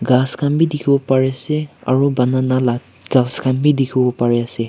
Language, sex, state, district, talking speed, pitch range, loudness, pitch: Nagamese, male, Nagaland, Kohima, 165 wpm, 125-140 Hz, -17 LUFS, 130 Hz